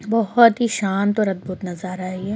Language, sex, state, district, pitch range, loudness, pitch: Hindi, female, Chhattisgarh, Korba, 185-220 Hz, -20 LUFS, 195 Hz